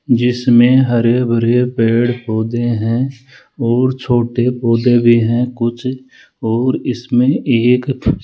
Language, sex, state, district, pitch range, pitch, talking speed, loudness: Hindi, male, Rajasthan, Jaipur, 120-125 Hz, 120 Hz, 115 wpm, -14 LUFS